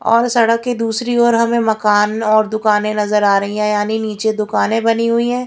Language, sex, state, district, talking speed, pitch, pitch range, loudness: Hindi, female, Bihar, Katihar, 210 wpm, 220 Hz, 210-230 Hz, -15 LUFS